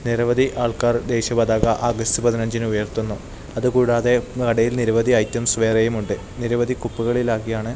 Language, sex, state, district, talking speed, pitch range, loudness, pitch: Malayalam, male, Kerala, Kasaragod, 125 wpm, 115-120 Hz, -20 LUFS, 115 Hz